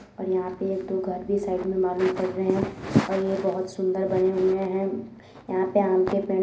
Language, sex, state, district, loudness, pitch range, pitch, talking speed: Hindi, female, Uttar Pradesh, Deoria, -25 LUFS, 185-195 Hz, 190 Hz, 250 wpm